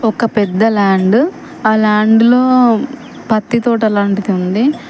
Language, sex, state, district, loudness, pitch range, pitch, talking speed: Telugu, female, Telangana, Mahabubabad, -12 LUFS, 210-245 Hz, 225 Hz, 135 wpm